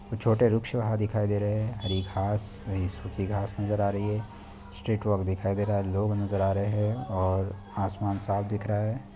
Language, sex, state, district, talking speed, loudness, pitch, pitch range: Hindi, male, Chhattisgarh, Balrampur, 215 wpm, -29 LUFS, 100 Hz, 100-105 Hz